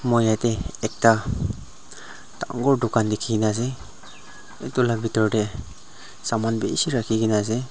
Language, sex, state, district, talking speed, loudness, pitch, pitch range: Nagamese, male, Nagaland, Dimapur, 130 wpm, -23 LUFS, 115 Hz, 110-120 Hz